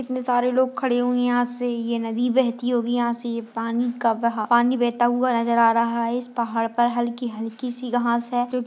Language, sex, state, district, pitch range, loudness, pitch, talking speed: Hindi, female, Chhattisgarh, Raigarh, 235-245 Hz, -22 LUFS, 240 Hz, 235 wpm